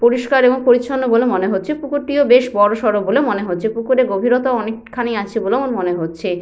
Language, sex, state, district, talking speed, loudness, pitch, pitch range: Bengali, female, West Bengal, Jhargram, 185 wpm, -16 LUFS, 240 Hz, 205-255 Hz